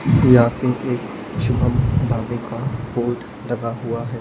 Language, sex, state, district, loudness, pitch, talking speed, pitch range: Hindi, male, Maharashtra, Gondia, -20 LUFS, 120 Hz, 140 wpm, 120-125 Hz